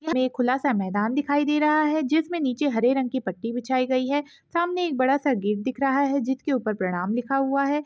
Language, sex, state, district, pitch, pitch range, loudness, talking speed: Hindi, female, Uttarakhand, Tehri Garhwal, 270 Hz, 250-290 Hz, -24 LUFS, 235 wpm